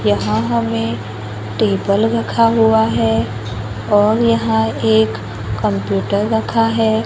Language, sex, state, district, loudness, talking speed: Hindi, female, Maharashtra, Gondia, -16 LUFS, 100 wpm